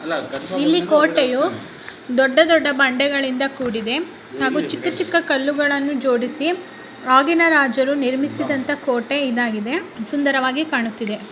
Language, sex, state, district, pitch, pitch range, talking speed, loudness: Kannada, female, Karnataka, Raichur, 280 Hz, 260-310 Hz, 95 wpm, -18 LUFS